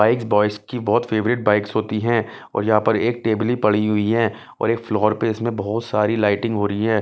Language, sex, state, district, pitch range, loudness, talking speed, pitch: Hindi, male, Bihar, West Champaran, 105-115 Hz, -20 LUFS, 240 wpm, 110 Hz